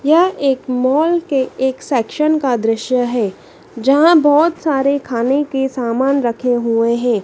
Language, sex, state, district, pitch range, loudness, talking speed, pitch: Hindi, female, Madhya Pradesh, Dhar, 240-290 Hz, -15 LUFS, 150 wpm, 265 Hz